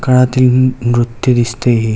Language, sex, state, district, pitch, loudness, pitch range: Marathi, male, Maharashtra, Aurangabad, 125 Hz, -12 LUFS, 120-125 Hz